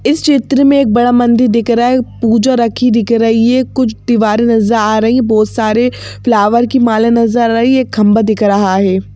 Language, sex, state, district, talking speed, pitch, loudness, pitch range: Hindi, female, Madhya Pradesh, Bhopal, 215 wpm, 235 Hz, -11 LUFS, 220-245 Hz